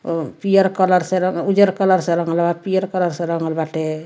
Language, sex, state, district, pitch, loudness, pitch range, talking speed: Bhojpuri, female, Bihar, Muzaffarpur, 180 Hz, -18 LUFS, 165-190 Hz, 190 wpm